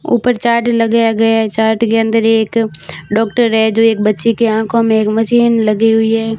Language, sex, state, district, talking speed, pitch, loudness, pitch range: Hindi, female, Rajasthan, Barmer, 205 wpm, 225 Hz, -12 LUFS, 220-230 Hz